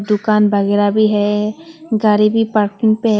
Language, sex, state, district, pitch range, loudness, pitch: Hindi, female, Tripura, West Tripura, 210-220 Hz, -15 LUFS, 210 Hz